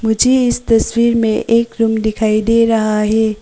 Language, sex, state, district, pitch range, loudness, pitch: Hindi, female, Arunachal Pradesh, Papum Pare, 220-230 Hz, -14 LUFS, 225 Hz